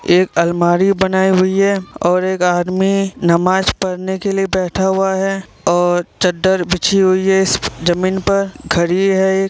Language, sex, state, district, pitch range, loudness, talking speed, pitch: Hindi, male, Bihar, Vaishali, 175-195 Hz, -15 LUFS, 165 wpm, 190 Hz